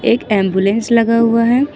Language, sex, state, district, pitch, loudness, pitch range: Hindi, female, Jharkhand, Ranchi, 230 Hz, -14 LUFS, 205-235 Hz